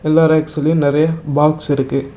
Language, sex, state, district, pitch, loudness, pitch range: Tamil, male, Tamil Nadu, Namakkal, 155 Hz, -15 LUFS, 145-160 Hz